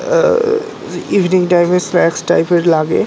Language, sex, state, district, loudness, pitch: Bengali, male, West Bengal, North 24 Parganas, -13 LUFS, 180 Hz